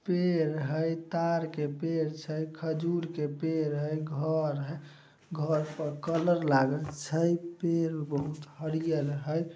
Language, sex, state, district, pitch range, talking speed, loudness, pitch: Maithili, male, Bihar, Samastipur, 150-165 Hz, 130 wpm, -31 LUFS, 155 Hz